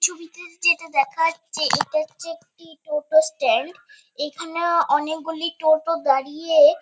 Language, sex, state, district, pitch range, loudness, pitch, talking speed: Bengali, female, West Bengal, Kolkata, 310-335 Hz, -21 LUFS, 325 Hz, 115 wpm